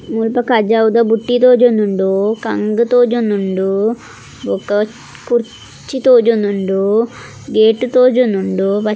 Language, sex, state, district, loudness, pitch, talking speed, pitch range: Tulu, female, Karnataka, Dakshina Kannada, -14 LUFS, 225 Hz, 75 wpm, 205-240 Hz